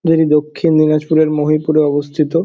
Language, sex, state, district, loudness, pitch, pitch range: Bengali, male, West Bengal, Dakshin Dinajpur, -14 LUFS, 155 Hz, 150-160 Hz